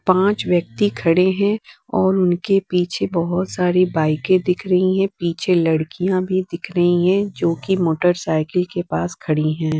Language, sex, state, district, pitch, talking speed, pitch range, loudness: Hindi, female, Bihar, West Champaran, 180 Hz, 165 wpm, 170-185 Hz, -19 LUFS